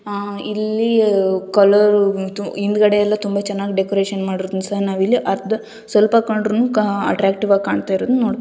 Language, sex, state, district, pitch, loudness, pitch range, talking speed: Kannada, female, Karnataka, Gulbarga, 205 Hz, -17 LUFS, 195-215 Hz, 130 wpm